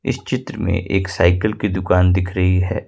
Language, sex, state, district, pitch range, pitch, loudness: Hindi, male, Jharkhand, Ranchi, 90-105 Hz, 95 Hz, -18 LUFS